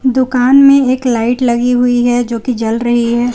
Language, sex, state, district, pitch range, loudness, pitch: Hindi, female, Jharkhand, Garhwa, 240-255 Hz, -11 LUFS, 245 Hz